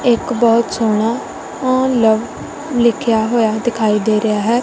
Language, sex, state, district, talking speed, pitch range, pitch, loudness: Punjabi, female, Punjab, Kapurthala, 140 wpm, 220-240 Hz, 230 Hz, -15 LUFS